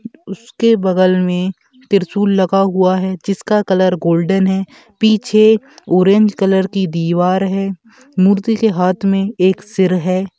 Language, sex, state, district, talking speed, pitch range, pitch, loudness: Bhojpuri, male, Uttar Pradesh, Gorakhpur, 140 wpm, 185-210 Hz, 195 Hz, -14 LUFS